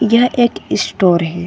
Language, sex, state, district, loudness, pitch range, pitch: Hindi, female, Chhattisgarh, Bilaspur, -14 LUFS, 175-240 Hz, 230 Hz